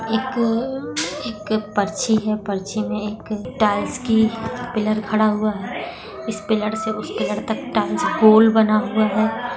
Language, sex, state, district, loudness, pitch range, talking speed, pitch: Hindi, female, Bihar, Darbhanga, -20 LUFS, 215-225 Hz, 155 wpm, 215 Hz